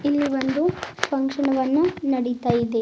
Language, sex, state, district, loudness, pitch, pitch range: Kannada, female, Karnataka, Bidar, -23 LUFS, 270 Hz, 260-290 Hz